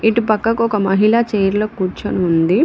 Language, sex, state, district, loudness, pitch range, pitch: Telugu, female, Telangana, Mahabubabad, -16 LUFS, 195-225 Hz, 210 Hz